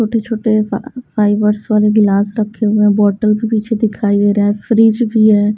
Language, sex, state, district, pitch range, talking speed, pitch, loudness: Hindi, female, Haryana, Rohtak, 205-225 Hz, 205 wpm, 210 Hz, -13 LUFS